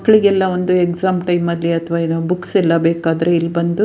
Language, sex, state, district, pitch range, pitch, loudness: Kannada, female, Karnataka, Dakshina Kannada, 170-185 Hz, 175 Hz, -16 LUFS